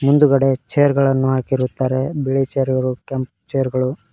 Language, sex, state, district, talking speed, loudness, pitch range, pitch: Kannada, male, Karnataka, Koppal, 145 wpm, -18 LUFS, 130-135 Hz, 130 Hz